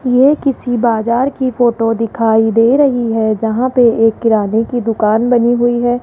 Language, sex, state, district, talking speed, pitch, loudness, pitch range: Hindi, male, Rajasthan, Jaipur, 180 wpm, 235 Hz, -13 LUFS, 225-245 Hz